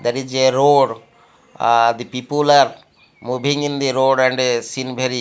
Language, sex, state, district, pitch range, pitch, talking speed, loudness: English, male, Odisha, Malkangiri, 120-135 Hz, 130 Hz, 195 wpm, -17 LUFS